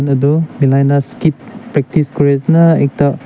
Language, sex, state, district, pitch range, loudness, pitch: Nagamese, male, Nagaland, Dimapur, 140-165 Hz, -13 LUFS, 145 Hz